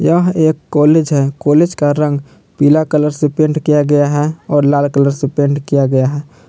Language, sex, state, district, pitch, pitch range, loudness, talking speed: Hindi, male, Jharkhand, Palamu, 145 Hz, 145-155 Hz, -13 LUFS, 205 wpm